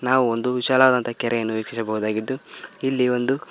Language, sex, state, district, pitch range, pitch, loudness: Kannada, male, Karnataka, Koppal, 115-130 Hz, 125 Hz, -22 LUFS